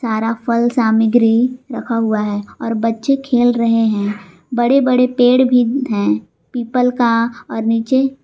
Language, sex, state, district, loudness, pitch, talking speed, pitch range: Hindi, female, Jharkhand, Palamu, -15 LUFS, 235 Hz, 145 wpm, 225-250 Hz